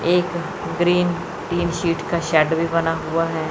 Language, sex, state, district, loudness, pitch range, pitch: Hindi, female, Chandigarh, Chandigarh, -21 LUFS, 165-175 Hz, 170 Hz